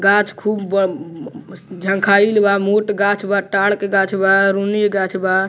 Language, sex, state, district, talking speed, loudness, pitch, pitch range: Bhojpuri, male, Bihar, Muzaffarpur, 185 wpm, -16 LUFS, 195 Hz, 195-205 Hz